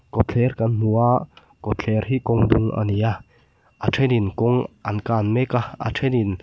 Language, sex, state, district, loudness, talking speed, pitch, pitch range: Mizo, male, Mizoram, Aizawl, -21 LUFS, 185 wpm, 115 Hz, 110-125 Hz